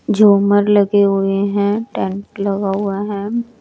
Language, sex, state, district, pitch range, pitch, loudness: Hindi, male, Chandigarh, Chandigarh, 200-205 Hz, 200 Hz, -16 LUFS